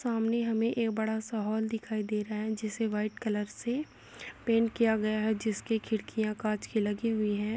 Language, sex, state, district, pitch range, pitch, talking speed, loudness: Hindi, female, Uttar Pradesh, Jalaun, 215-225 Hz, 220 Hz, 200 wpm, -31 LUFS